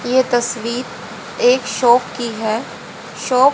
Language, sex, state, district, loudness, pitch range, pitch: Hindi, female, Haryana, Rohtak, -17 LUFS, 235-260 Hz, 245 Hz